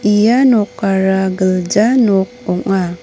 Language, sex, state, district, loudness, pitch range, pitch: Garo, female, Meghalaya, North Garo Hills, -14 LUFS, 190-220 Hz, 195 Hz